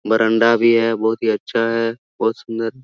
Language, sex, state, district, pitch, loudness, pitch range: Hindi, male, Jharkhand, Sahebganj, 115 Hz, -18 LUFS, 110-115 Hz